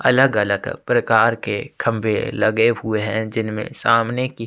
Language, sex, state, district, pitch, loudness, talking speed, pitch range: Hindi, male, Chhattisgarh, Sukma, 115 Hz, -19 LUFS, 135 wpm, 110-120 Hz